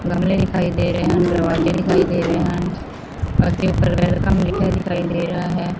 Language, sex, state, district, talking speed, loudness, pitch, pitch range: Punjabi, female, Punjab, Fazilka, 185 wpm, -19 LUFS, 175 Hz, 170-180 Hz